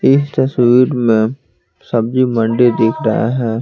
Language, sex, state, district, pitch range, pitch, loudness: Hindi, male, Bihar, Patna, 110-125 Hz, 120 Hz, -14 LUFS